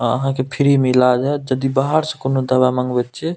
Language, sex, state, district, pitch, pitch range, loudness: Maithili, male, Bihar, Purnia, 130 Hz, 125-140 Hz, -17 LUFS